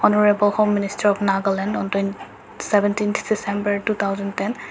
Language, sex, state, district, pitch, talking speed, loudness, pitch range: Nagamese, female, Nagaland, Dimapur, 205 Hz, 165 wpm, -21 LUFS, 200-210 Hz